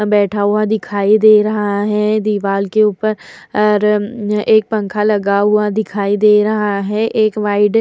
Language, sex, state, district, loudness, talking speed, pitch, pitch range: Hindi, female, Uttar Pradesh, Hamirpur, -14 LUFS, 170 wpm, 210 Hz, 205-215 Hz